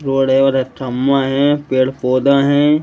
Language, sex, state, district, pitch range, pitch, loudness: Hindi, male, Uttar Pradesh, Deoria, 130-140 Hz, 135 Hz, -15 LUFS